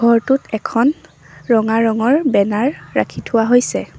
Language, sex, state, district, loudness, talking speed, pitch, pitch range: Assamese, female, Assam, Sonitpur, -16 LUFS, 120 wpm, 235 Hz, 225-270 Hz